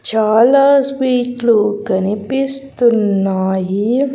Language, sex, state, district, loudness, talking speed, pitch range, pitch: Telugu, female, Andhra Pradesh, Sri Satya Sai, -14 LUFS, 45 wpm, 210-270 Hz, 235 Hz